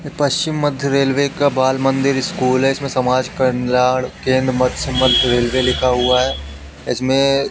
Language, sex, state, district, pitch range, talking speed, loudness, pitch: Hindi, male, Madhya Pradesh, Katni, 125-140 Hz, 150 wpm, -16 LUFS, 130 Hz